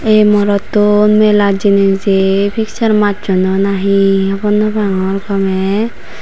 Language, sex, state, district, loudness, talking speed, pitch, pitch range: Chakma, female, Tripura, Unakoti, -12 LUFS, 65 wpm, 200 Hz, 195-210 Hz